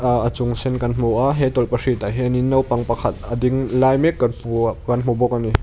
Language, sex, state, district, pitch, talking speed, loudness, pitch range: Mizo, male, Mizoram, Aizawl, 120 Hz, 245 wpm, -19 LUFS, 120-130 Hz